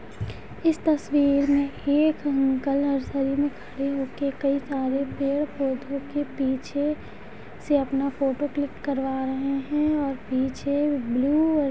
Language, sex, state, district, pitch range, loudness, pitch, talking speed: Hindi, female, Bihar, Muzaffarpur, 270-290 Hz, -25 LUFS, 280 Hz, 135 wpm